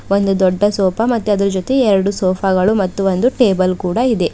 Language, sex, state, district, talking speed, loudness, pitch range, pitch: Kannada, female, Karnataka, Bidar, 210 wpm, -15 LUFS, 185-215 Hz, 195 Hz